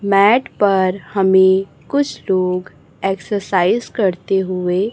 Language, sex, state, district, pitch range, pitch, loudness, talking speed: Hindi, female, Chhattisgarh, Raipur, 185-200 Hz, 190 Hz, -17 LUFS, 95 wpm